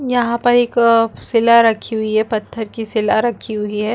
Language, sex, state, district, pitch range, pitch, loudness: Hindi, female, Chhattisgarh, Bastar, 220-235 Hz, 230 Hz, -16 LUFS